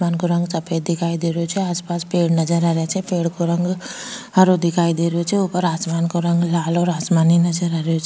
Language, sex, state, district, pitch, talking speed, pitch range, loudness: Rajasthani, female, Rajasthan, Nagaur, 170 Hz, 255 wpm, 170-175 Hz, -19 LUFS